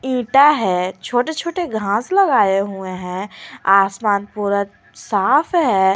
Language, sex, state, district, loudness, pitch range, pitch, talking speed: Hindi, female, Jharkhand, Garhwa, -17 LUFS, 195-275 Hz, 205 Hz, 120 wpm